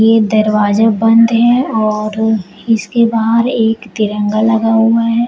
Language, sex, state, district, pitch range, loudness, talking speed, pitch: Hindi, female, Uttar Pradesh, Shamli, 215-230 Hz, -12 LUFS, 135 wpm, 225 Hz